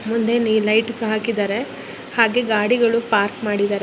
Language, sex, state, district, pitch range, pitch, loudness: Kannada, female, Karnataka, Raichur, 210-230 Hz, 220 Hz, -19 LUFS